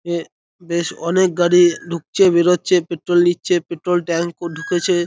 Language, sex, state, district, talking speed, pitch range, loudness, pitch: Bengali, male, West Bengal, North 24 Parganas, 140 wpm, 170-180 Hz, -17 LUFS, 175 Hz